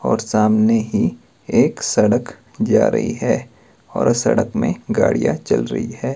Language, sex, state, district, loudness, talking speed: Hindi, male, Himachal Pradesh, Shimla, -18 LUFS, 145 wpm